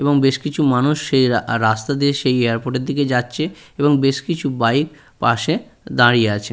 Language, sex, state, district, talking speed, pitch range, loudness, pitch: Bengali, male, West Bengal, Purulia, 195 wpm, 120-145 Hz, -18 LUFS, 135 Hz